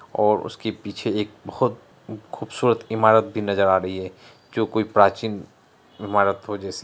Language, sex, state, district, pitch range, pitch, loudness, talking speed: Hindi, male, Bihar, Araria, 100-110 Hz, 105 Hz, -22 LUFS, 160 wpm